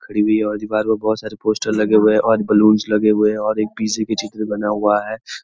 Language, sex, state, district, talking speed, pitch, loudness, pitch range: Hindi, male, Uttarakhand, Uttarkashi, 285 wpm, 110 Hz, -17 LUFS, 105-110 Hz